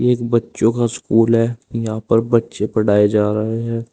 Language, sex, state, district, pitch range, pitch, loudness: Hindi, male, Uttar Pradesh, Saharanpur, 110-115 Hz, 115 Hz, -17 LUFS